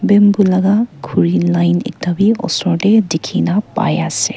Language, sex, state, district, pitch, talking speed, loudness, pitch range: Nagamese, female, Nagaland, Kohima, 195 Hz, 150 wpm, -14 LUFS, 160-210 Hz